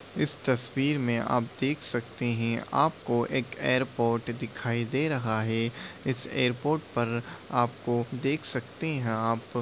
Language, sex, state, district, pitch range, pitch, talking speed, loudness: Hindi, male, Uttar Pradesh, Deoria, 115-135 Hz, 120 Hz, 145 wpm, -29 LUFS